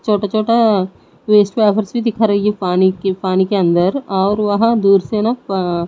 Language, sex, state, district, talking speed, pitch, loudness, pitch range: Hindi, female, Odisha, Nuapada, 165 wpm, 205 Hz, -15 LUFS, 190-215 Hz